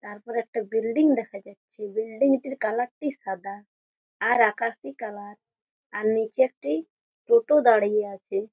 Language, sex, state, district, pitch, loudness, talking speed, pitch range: Bengali, female, West Bengal, Jhargram, 220 Hz, -25 LUFS, 135 wpm, 205-245 Hz